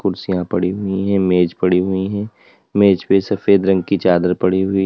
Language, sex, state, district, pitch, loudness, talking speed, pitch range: Hindi, male, Uttar Pradesh, Lalitpur, 95 Hz, -17 LUFS, 200 wpm, 90-100 Hz